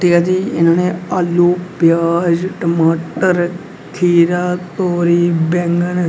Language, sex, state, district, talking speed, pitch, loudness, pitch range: Hindi, male, Punjab, Pathankot, 90 wpm, 175 Hz, -15 LUFS, 170-180 Hz